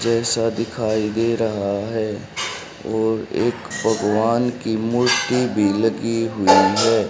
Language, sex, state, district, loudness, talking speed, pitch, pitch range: Hindi, male, Haryana, Rohtak, -20 LUFS, 120 wpm, 110 Hz, 110-115 Hz